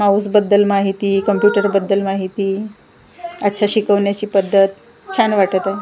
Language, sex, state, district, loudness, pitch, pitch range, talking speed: Marathi, female, Maharashtra, Gondia, -16 LUFS, 200 Hz, 195-205 Hz, 125 wpm